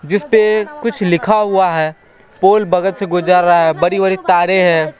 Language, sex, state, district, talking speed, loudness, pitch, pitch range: Hindi, female, Bihar, West Champaran, 190 wpm, -13 LUFS, 185 Hz, 175-205 Hz